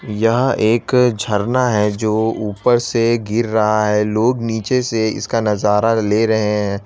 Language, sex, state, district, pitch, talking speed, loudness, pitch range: Hindi, male, Gujarat, Valsad, 110 Hz, 155 wpm, -16 LUFS, 105-115 Hz